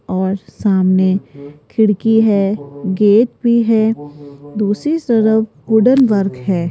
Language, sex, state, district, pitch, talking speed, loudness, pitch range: Hindi, female, Rajasthan, Jaipur, 205 Hz, 105 wpm, -14 LUFS, 185-225 Hz